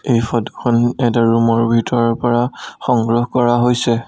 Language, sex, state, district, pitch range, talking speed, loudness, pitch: Assamese, male, Assam, Sonitpur, 115-120 Hz, 130 wpm, -16 LUFS, 120 Hz